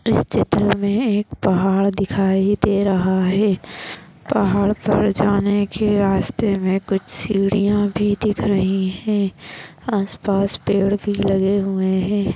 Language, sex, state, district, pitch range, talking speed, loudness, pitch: Hindi, female, Bihar, Bhagalpur, 195-205 Hz, 135 wpm, -19 LUFS, 200 Hz